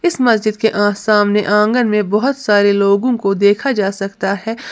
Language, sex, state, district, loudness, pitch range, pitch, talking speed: Hindi, female, Uttar Pradesh, Lalitpur, -14 LUFS, 200-225 Hz, 210 Hz, 190 wpm